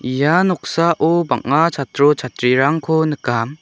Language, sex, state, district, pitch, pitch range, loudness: Garo, male, Meghalaya, South Garo Hills, 145 Hz, 130-165 Hz, -16 LUFS